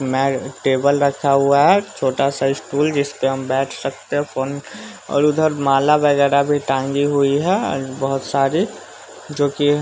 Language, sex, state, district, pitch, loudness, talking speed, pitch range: Hindi, male, Bihar, West Champaran, 140 Hz, -18 LUFS, 165 wpm, 135-145 Hz